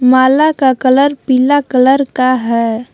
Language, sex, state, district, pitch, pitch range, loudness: Hindi, female, Jharkhand, Palamu, 260 Hz, 255-275 Hz, -11 LUFS